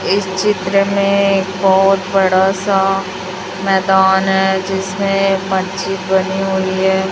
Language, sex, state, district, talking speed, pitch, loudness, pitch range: Hindi, female, Chhattisgarh, Raipur, 120 wpm, 190 Hz, -15 LUFS, 190-195 Hz